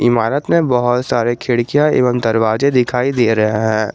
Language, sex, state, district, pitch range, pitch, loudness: Hindi, male, Jharkhand, Garhwa, 115-125 Hz, 120 Hz, -15 LUFS